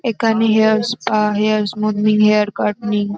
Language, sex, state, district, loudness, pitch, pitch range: Bengali, female, West Bengal, North 24 Parganas, -16 LUFS, 215 Hz, 210-220 Hz